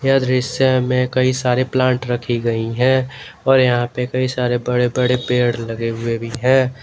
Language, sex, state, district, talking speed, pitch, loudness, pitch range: Hindi, male, Jharkhand, Garhwa, 185 wpm, 125 Hz, -18 LUFS, 120-130 Hz